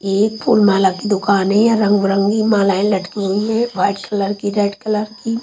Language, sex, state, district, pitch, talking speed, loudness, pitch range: Hindi, female, Haryana, Charkhi Dadri, 205 Hz, 245 wpm, -16 LUFS, 195-215 Hz